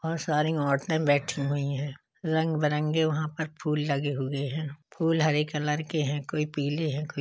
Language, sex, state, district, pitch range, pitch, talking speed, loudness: Hindi, male, Uttar Pradesh, Hamirpur, 145-160 Hz, 150 Hz, 200 wpm, -28 LUFS